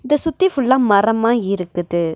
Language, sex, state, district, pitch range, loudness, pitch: Tamil, female, Tamil Nadu, Nilgiris, 185-265 Hz, -16 LUFS, 225 Hz